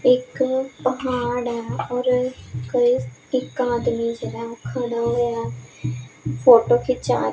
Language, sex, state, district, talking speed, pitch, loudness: Punjabi, female, Punjab, Pathankot, 125 wpm, 240 Hz, -22 LUFS